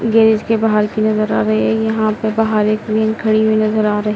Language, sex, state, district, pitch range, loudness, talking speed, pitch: Hindi, female, Madhya Pradesh, Dhar, 215-220 Hz, -15 LUFS, 275 wpm, 215 Hz